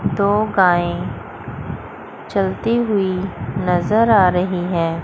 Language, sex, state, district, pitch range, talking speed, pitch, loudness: Hindi, female, Chandigarh, Chandigarh, 180-205 Hz, 95 wpm, 185 Hz, -18 LUFS